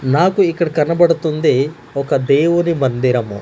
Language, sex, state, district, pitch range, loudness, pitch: Telugu, male, Andhra Pradesh, Manyam, 135-170 Hz, -15 LUFS, 150 Hz